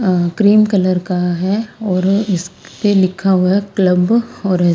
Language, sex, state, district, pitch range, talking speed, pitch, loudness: Hindi, female, Haryana, Rohtak, 180-205 Hz, 165 wpm, 190 Hz, -15 LUFS